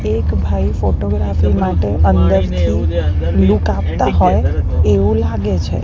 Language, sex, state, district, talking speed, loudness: Gujarati, female, Gujarat, Gandhinagar, 115 wpm, -15 LUFS